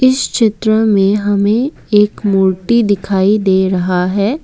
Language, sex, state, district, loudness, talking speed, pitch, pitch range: Hindi, female, Assam, Kamrup Metropolitan, -13 LUFS, 135 wpm, 205 Hz, 190-220 Hz